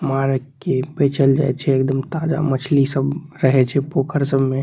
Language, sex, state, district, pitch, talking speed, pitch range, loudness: Maithili, male, Bihar, Saharsa, 135 Hz, 180 wpm, 135-145 Hz, -19 LUFS